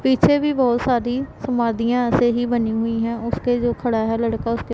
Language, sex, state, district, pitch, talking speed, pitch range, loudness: Hindi, female, Punjab, Pathankot, 240 Hz, 200 wpm, 230-245 Hz, -20 LUFS